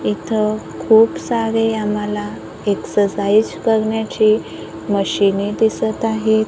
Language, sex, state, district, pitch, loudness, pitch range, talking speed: Marathi, female, Maharashtra, Gondia, 215 Hz, -17 LUFS, 200-220 Hz, 85 wpm